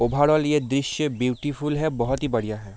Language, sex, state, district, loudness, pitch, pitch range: Hindi, male, Bihar, Sitamarhi, -23 LUFS, 140 Hz, 120-150 Hz